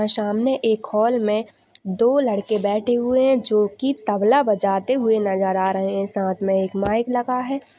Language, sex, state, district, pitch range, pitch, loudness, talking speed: Hindi, female, Chhattisgarh, Jashpur, 200-245 Hz, 215 Hz, -20 LUFS, 185 wpm